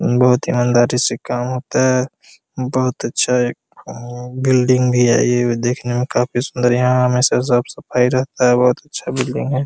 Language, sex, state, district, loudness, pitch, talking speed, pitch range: Hindi, male, Jharkhand, Jamtara, -16 LUFS, 125 Hz, 160 wpm, 125-130 Hz